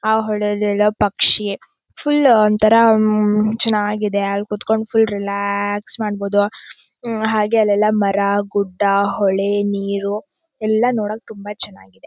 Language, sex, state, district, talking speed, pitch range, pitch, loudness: Kannada, female, Karnataka, Shimoga, 105 wpm, 200-220 Hz, 210 Hz, -17 LUFS